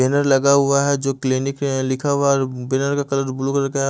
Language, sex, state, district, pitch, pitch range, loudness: Hindi, male, Odisha, Malkangiri, 135 Hz, 135-140 Hz, -19 LUFS